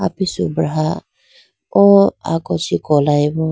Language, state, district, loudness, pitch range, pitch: Idu Mishmi, Arunachal Pradesh, Lower Dibang Valley, -16 LUFS, 155-200 Hz, 165 Hz